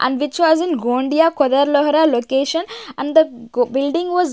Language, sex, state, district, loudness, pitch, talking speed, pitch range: English, female, Maharashtra, Gondia, -17 LUFS, 290 Hz, 180 wpm, 265-325 Hz